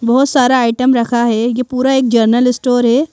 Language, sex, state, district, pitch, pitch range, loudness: Hindi, female, Madhya Pradesh, Bhopal, 250 Hz, 235-260 Hz, -12 LUFS